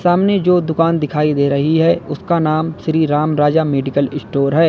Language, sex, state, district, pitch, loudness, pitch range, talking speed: Hindi, male, Uttar Pradesh, Lalitpur, 155 Hz, -15 LUFS, 145-165 Hz, 190 wpm